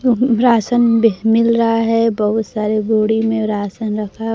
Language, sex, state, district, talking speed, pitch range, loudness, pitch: Hindi, female, Bihar, Kaimur, 135 wpm, 215-230 Hz, -15 LUFS, 225 Hz